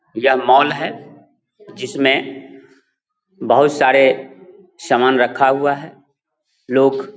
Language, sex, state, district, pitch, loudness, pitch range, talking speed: Hindi, male, Bihar, Darbhanga, 140 Hz, -15 LUFS, 135-160 Hz, 100 wpm